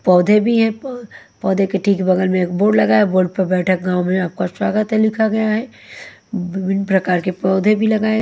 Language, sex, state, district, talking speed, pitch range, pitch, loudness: Hindi, female, Haryana, Jhajjar, 220 wpm, 185-215 Hz, 190 Hz, -17 LUFS